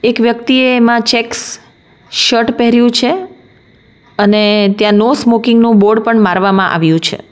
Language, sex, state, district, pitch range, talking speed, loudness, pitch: Gujarati, female, Gujarat, Valsad, 210-235 Hz, 140 wpm, -10 LUFS, 230 Hz